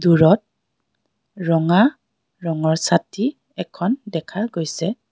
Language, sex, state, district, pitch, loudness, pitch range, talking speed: Assamese, female, Assam, Kamrup Metropolitan, 175 Hz, -20 LUFS, 165-220 Hz, 80 wpm